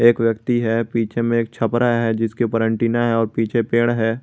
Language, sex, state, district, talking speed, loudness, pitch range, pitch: Hindi, male, Jharkhand, Garhwa, 225 wpm, -19 LUFS, 115-120 Hz, 115 Hz